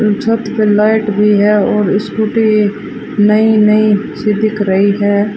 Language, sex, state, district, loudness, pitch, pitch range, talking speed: Hindi, female, Rajasthan, Bikaner, -12 LUFS, 210 Hz, 205-215 Hz, 145 wpm